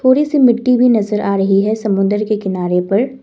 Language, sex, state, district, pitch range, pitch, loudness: Hindi, female, Assam, Kamrup Metropolitan, 195-250 Hz, 210 Hz, -14 LUFS